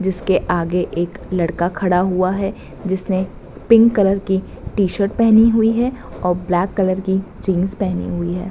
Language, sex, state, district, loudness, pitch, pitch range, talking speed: Hindi, female, Bihar, Bhagalpur, -18 LUFS, 190 Hz, 180-195 Hz, 160 wpm